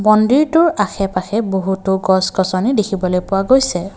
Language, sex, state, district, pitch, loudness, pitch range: Assamese, male, Assam, Kamrup Metropolitan, 195 Hz, -15 LUFS, 190-225 Hz